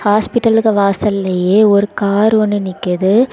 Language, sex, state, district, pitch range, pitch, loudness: Tamil, female, Tamil Nadu, Kanyakumari, 195-215 Hz, 205 Hz, -13 LUFS